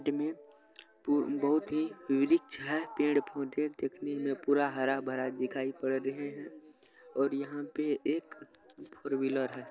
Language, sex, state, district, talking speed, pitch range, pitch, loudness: Maithili, male, Bihar, Supaul, 135 wpm, 135-145 Hz, 145 Hz, -33 LUFS